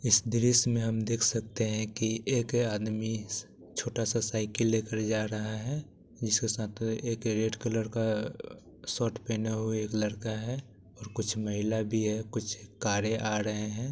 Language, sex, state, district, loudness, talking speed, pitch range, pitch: Maithili, male, Bihar, Supaul, -31 LUFS, 170 wpm, 110-115 Hz, 110 Hz